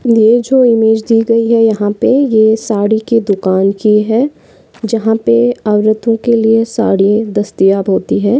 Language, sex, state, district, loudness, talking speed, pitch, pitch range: Hindi, female, Maharashtra, Pune, -11 LUFS, 165 wpm, 225 Hz, 210-230 Hz